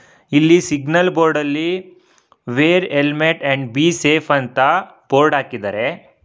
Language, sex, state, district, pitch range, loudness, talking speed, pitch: Kannada, male, Karnataka, Bangalore, 140-165 Hz, -16 LUFS, 115 wpm, 150 Hz